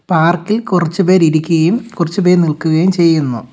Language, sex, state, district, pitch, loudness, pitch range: Malayalam, male, Kerala, Kollam, 170 Hz, -13 LUFS, 160-185 Hz